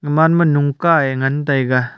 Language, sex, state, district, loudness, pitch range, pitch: Wancho, male, Arunachal Pradesh, Longding, -15 LUFS, 135-160 Hz, 145 Hz